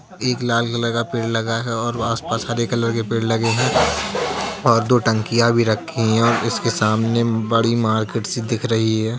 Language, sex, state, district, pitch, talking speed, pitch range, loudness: Hindi, female, Uttar Pradesh, Jalaun, 115 Hz, 190 wpm, 115-120 Hz, -19 LUFS